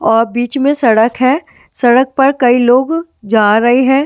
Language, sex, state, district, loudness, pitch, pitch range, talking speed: Hindi, male, Delhi, New Delhi, -11 LUFS, 250 Hz, 235-270 Hz, 190 wpm